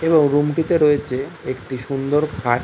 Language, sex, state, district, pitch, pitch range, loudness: Bengali, male, West Bengal, Kolkata, 145 Hz, 130-155 Hz, -19 LUFS